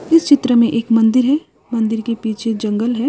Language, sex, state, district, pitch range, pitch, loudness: Hindi, female, Odisha, Sambalpur, 225-255 Hz, 235 Hz, -16 LUFS